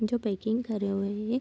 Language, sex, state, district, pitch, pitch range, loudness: Hindi, female, Bihar, Darbhanga, 220 Hz, 205-230 Hz, -30 LUFS